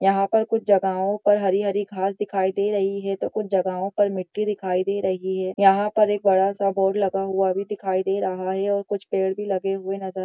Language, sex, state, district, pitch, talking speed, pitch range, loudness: Hindi, female, Bihar, Begusarai, 195 Hz, 235 wpm, 190-200 Hz, -23 LUFS